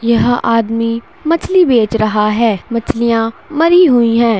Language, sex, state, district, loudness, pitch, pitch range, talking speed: Hindi, female, Bihar, Darbhanga, -13 LUFS, 235 Hz, 225-280 Hz, 135 wpm